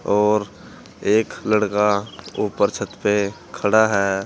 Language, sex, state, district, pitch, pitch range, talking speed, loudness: Hindi, male, Uttar Pradesh, Saharanpur, 105 Hz, 100-105 Hz, 110 wpm, -20 LUFS